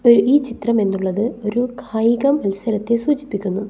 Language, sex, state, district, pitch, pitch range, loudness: Malayalam, female, Kerala, Kasaragod, 230 Hz, 205-245 Hz, -18 LUFS